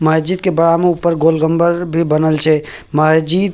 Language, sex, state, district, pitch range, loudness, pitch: Maithili, male, Bihar, Purnia, 155-170 Hz, -14 LUFS, 165 Hz